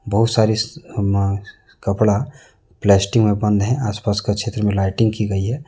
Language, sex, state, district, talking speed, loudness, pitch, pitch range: Hindi, male, Jharkhand, Deoghar, 160 wpm, -19 LUFS, 105 Hz, 100-115 Hz